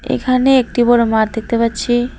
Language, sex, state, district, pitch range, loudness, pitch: Bengali, female, West Bengal, Alipurduar, 230-250 Hz, -14 LUFS, 240 Hz